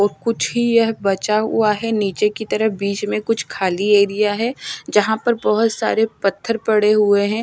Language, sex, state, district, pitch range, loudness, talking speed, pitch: Hindi, female, Chandigarh, Chandigarh, 205-225 Hz, -18 LUFS, 195 wpm, 215 Hz